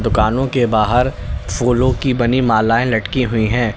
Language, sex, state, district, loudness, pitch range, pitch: Hindi, male, Uttar Pradesh, Lalitpur, -16 LUFS, 110-125 Hz, 120 Hz